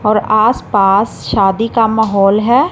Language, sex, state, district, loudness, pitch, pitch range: Hindi, female, Punjab, Fazilka, -12 LUFS, 215 Hz, 200-225 Hz